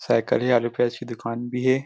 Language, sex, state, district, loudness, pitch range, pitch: Chhattisgarhi, male, Chhattisgarh, Rajnandgaon, -24 LUFS, 120-125 Hz, 120 Hz